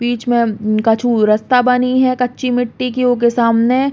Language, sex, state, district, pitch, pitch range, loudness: Bundeli, female, Uttar Pradesh, Hamirpur, 245 Hz, 230-250 Hz, -14 LUFS